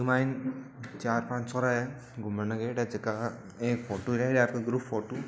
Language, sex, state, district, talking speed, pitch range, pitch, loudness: Marwari, male, Rajasthan, Churu, 215 wpm, 115-130 Hz, 120 Hz, -31 LUFS